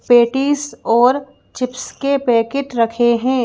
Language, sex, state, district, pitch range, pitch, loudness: Hindi, female, Madhya Pradesh, Bhopal, 240-275 Hz, 255 Hz, -16 LUFS